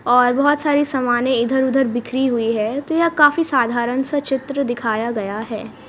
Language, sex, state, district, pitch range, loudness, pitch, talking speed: Hindi, female, Haryana, Rohtak, 240-280 Hz, -18 LUFS, 260 Hz, 185 wpm